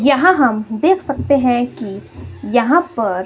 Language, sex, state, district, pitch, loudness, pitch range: Hindi, female, Himachal Pradesh, Shimla, 250 Hz, -15 LUFS, 225-290 Hz